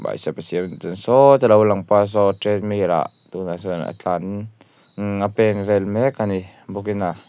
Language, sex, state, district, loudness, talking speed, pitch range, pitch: Mizo, male, Mizoram, Aizawl, -19 LUFS, 175 wpm, 95-105 Hz, 100 Hz